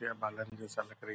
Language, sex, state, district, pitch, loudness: Hindi, male, Bihar, Purnia, 110 Hz, -40 LUFS